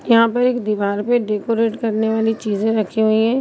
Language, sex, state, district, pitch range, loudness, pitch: Hindi, female, Bihar, Begusarai, 215-230 Hz, -18 LUFS, 225 Hz